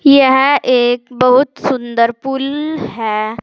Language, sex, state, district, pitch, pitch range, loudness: Hindi, female, Uttar Pradesh, Saharanpur, 255 Hz, 235-275 Hz, -14 LUFS